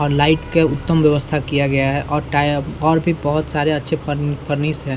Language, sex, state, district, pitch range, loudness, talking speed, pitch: Hindi, male, Bihar, Saran, 145-155 Hz, -18 LUFS, 215 wpm, 145 Hz